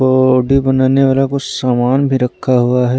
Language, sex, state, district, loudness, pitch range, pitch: Hindi, male, Punjab, Pathankot, -13 LUFS, 125-135 Hz, 130 Hz